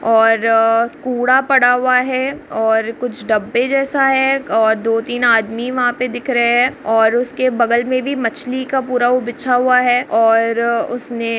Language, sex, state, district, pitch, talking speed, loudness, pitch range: Hindi, female, Bihar, Muzaffarpur, 245 Hz, 175 wpm, -15 LUFS, 230-255 Hz